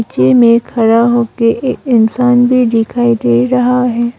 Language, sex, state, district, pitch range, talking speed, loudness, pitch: Hindi, female, Arunachal Pradesh, Longding, 225-245 Hz, 170 wpm, -11 LUFS, 235 Hz